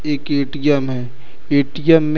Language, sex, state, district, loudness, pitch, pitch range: Hindi, male, Uttar Pradesh, Lucknow, -18 LUFS, 145 Hz, 135-150 Hz